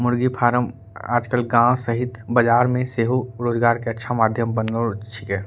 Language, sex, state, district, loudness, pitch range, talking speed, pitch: Angika, male, Bihar, Bhagalpur, -20 LUFS, 115-120 Hz, 155 wpm, 120 Hz